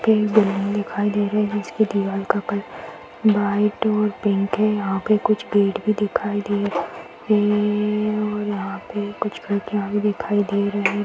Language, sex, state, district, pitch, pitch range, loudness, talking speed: Hindi, female, Uttar Pradesh, Gorakhpur, 205 Hz, 205-210 Hz, -21 LUFS, 170 wpm